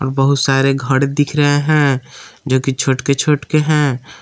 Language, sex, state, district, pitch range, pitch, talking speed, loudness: Hindi, male, Jharkhand, Palamu, 130-145 Hz, 140 Hz, 155 wpm, -15 LUFS